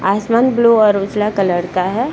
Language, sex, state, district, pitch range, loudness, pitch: Hindi, female, Bihar, Saran, 195-230 Hz, -14 LUFS, 210 Hz